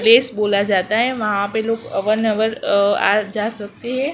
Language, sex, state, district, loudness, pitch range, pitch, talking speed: Hindi, female, Gujarat, Gandhinagar, -18 LUFS, 205-225 Hz, 215 Hz, 160 wpm